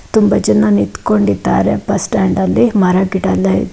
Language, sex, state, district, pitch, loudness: Kannada, female, Karnataka, Dakshina Kannada, 105 Hz, -13 LUFS